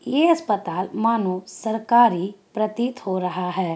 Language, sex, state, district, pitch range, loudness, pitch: Hindi, female, Bihar, Gaya, 185-235 Hz, -22 LUFS, 205 Hz